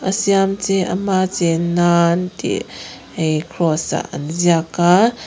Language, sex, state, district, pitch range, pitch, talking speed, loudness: Mizo, female, Mizoram, Aizawl, 170-190 Hz, 175 Hz, 135 wpm, -17 LUFS